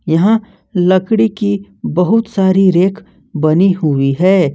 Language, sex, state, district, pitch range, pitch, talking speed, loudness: Hindi, male, Jharkhand, Ranchi, 180-205 Hz, 190 Hz, 120 wpm, -13 LUFS